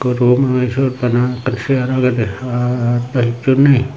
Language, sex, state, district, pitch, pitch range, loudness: Chakma, male, Tripura, Unakoti, 125 Hz, 125-130 Hz, -15 LUFS